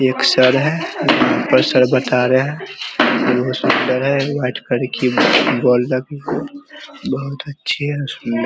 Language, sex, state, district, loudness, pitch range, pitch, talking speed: Hindi, male, Bihar, Vaishali, -16 LUFS, 125-145 Hz, 135 Hz, 90 wpm